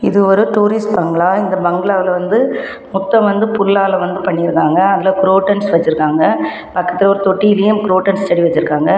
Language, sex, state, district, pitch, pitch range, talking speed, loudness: Tamil, female, Tamil Nadu, Kanyakumari, 190 Hz, 180-200 Hz, 140 wpm, -13 LUFS